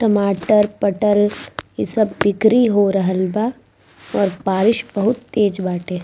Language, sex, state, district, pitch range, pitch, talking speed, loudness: Bhojpuri, female, Bihar, East Champaran, 195-220 Hz, 205 Hz, 150 wpm, -18 LUFS